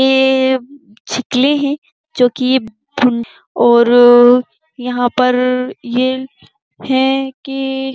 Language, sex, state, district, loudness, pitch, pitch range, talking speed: Hindi, female, Uttar Pradesh, Jyotiba Phule Nagar, -13 LUFS, 260 Hz, 245-265 Hz, 75 wpm